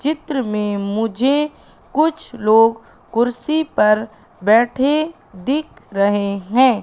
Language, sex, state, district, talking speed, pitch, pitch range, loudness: Hindi, female, Madhya Pradesh, Katni, 95 wpm, 235 Hz, 210-285 Hz, -18 LUFS